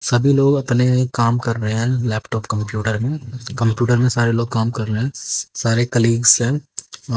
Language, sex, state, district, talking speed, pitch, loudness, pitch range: Hindi, female, Haryana, Jhajjar, 175 wpm, 120 Hz, -18 LUFS, 115-125 Hz